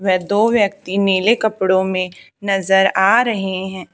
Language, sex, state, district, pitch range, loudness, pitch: Hindi, female, Haryana, Charkhi Dadri, 190-205 Hz, -16 LUFS, 195 Hz